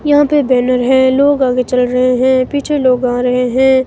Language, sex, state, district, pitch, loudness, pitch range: Hindi, female, Himachal Pradesh, Shimla, 260 Hz, -12 LUFS, 250-275 Hz